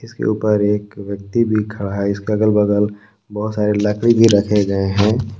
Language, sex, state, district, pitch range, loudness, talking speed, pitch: Hindi, male, Jharkhand, Palamu, 100-110 Hz, -17 LUFS, 190 wpm, 105 Hz